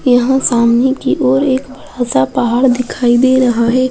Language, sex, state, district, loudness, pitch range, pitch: Hindi, female, Bihar, Bhagalpur, -12 LUFS, 240-260 Hz, 250 Hz